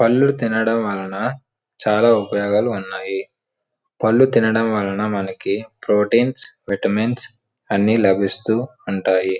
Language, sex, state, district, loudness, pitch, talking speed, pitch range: Telugu, male, Andhra Pradesh, Srikakulam, -19 LUFS, 110 Hz, 95 wpm, 100-115 Hz